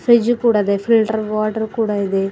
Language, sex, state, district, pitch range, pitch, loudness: Kannada, female, Karnataka, Bidar, 205-230 Hz, 220 Hz, -17 LUFS